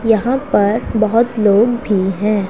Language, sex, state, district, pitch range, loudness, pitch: Hindi, female, Punjab, Pathankot, 205-235 Hz, -15 LUFS, 215 Hz